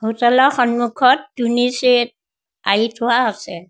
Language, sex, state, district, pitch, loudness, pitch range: Assamese, female, Assam, Sonitpur, 240 Hz, -16 LUFS, 230-250 Hz